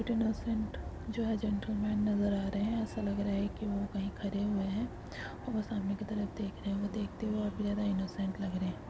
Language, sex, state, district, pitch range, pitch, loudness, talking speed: Hindi, female, Jharkhand, Jamtara, 200-215 Hz, 205 Hz, -35 LUFS, 230 wpm